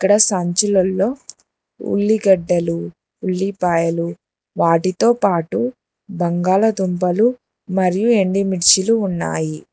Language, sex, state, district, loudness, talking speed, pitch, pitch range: Telugu, female, Telangana, Hyderabad, -17 LUFS, 70 wpm, 190 Hz, 175-205 Hz